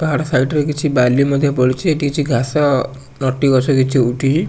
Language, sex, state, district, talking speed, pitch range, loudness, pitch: Odia, male, Odisha, Nuapada, 185 wpm, 130-145 Hz, -16 LUFS, 140 Hz